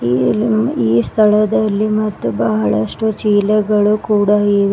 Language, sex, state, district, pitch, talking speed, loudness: Kannada, female, Karnataka, Bidar, 210 Hz, 75 wpm, -15 LUFS